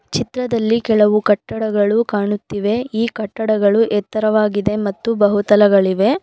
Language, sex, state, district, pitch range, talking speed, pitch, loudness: Kannada, female, Karnataka, Bangalore, 205-225 Hz, 85 wpm, 210 Hz, -16 LUFS